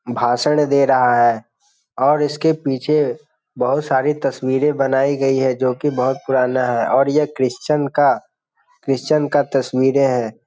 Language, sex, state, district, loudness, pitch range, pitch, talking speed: Hindi, male, Bihar, Jamui, -17 LUFS, 130-150 Hz, 135 Hz, 135 wpm